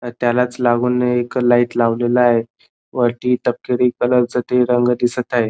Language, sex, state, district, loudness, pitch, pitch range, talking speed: Marathi, male, Maharashtra, Dhule, -17 LUFS, 125 Hz, 120-125 Hz, 150 wpm